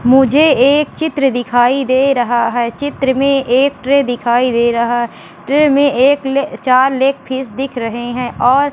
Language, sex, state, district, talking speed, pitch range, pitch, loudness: Hindi, female, Madhya Pradesh, Katni, 185 wpm, 245-275 Hz, 265 Hz, -13 LUFS